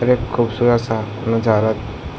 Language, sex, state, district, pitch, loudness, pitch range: Hindi, male, Bihar, Jahanabad, 115 Hz, -18 LUFS, 110-120 Hz